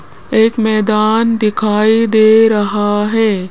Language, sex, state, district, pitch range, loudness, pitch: Hindi, female, Rajasthan, Jaipur, 210-225 Hz, -12 LUFS, 215 Hz